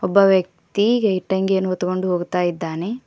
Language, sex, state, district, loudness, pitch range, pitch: Kannada, female, Karnataka, Koppal, -20 LUFS, 180-195 Hz, 185 Hz